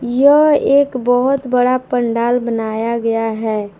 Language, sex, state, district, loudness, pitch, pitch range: Hindi, female, Jharkhand, Palamu, -15 LUFS, 245 Hz, 225-255 Hz